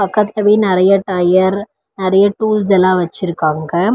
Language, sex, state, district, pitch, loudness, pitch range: Tamil, female, Tamil Nadu, Chennai, 190 Hz, -14 LUFS, 180-205 Hz